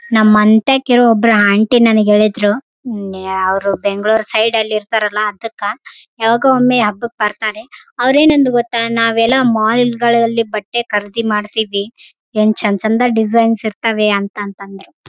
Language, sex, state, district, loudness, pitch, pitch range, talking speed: Kannada, female, Karnataka, Raichur, -13 LUFS, 220 Hz, 210-235 Hz, 55 wpm